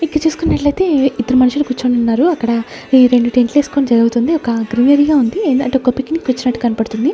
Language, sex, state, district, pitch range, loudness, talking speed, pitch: Telugu, female, Andhra Pradesh, Sri Satya Sai, 240-290 Hz, -14 LUFS, 170 wpm, 255 Hz